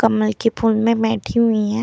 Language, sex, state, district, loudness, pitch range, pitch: Hindi, female, Bihar, Vaishali, -18 LUFS, 215-230 Hz, 225 Hz